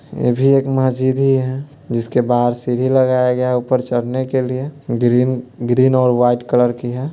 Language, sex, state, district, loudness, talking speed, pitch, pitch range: Hindi, male, Bihar, Muzaffarpur, -16 LUFS, 195 wpm, 125 Hz, 120-130 Hz